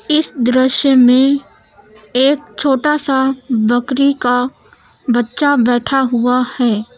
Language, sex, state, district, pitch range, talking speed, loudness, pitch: Hindi, female, Uttar Pradesh, Lucknow, 245-275 Hz, 105 wpm, -14 LUFS, 255 Hz